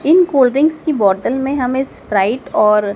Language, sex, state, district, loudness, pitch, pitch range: Hindi, male, Madhya Pradesh, Dhar, -15 LUFS, 265 Hz, 210-290 Hz